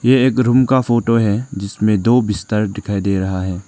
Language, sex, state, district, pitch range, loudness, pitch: Hindi, male, Arunachal Pradesh, Lower Dibang Valley, 100-125 Hz, -16 LUFS, 105 Hz